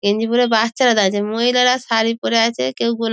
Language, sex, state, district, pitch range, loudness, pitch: Bengali, female, West Bengal, Dakshin Dinajpur, 220-240 Hz, -16 LUFS, 230 Hz